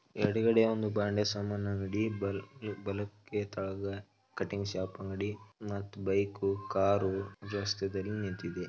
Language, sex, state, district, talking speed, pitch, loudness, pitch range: Kannada, male, Karnataka, Dharwad, 105 wpm, 100 Hz, -34 LUFS, 100-105 Hz